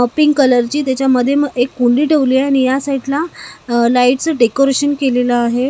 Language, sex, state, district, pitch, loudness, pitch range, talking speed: Marathi, female, Maharashtra, Mumbai Suburban, 265 Hz, -14 LUFS, 245-285 Hz, 145 wpm